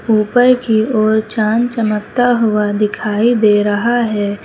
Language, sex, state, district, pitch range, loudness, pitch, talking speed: Hindi, female, Uttar Pradesh, Lucknow, 210-240 Hz, -14 LUFS, 220 Hz, 135 wpm